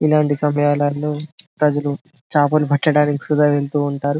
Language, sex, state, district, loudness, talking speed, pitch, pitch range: Telugu, male, Telangana, Karimnagar, -18 LUFS, 115 wpm, 145 Hz, 145-150 Hz